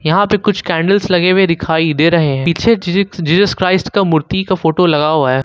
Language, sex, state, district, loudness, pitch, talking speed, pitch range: Hindi, male, Jharkhand, Ranchi, -13 LUFS, 175 Hz, 230 wpm, 160-195 Hz